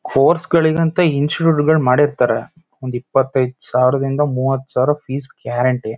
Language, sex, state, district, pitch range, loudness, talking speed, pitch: Kannada, male, Karnataka, Shimoga, 130-155 Hz, -17 LUFS, 120 wpm, 135 Hz